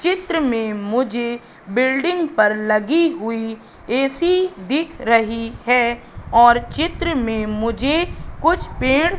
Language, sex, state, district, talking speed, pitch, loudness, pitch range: Hindi, female, Madhya Pradesh, Katni, 110 wpm, 245 Hz, -19 LUFS, 230-325 Hz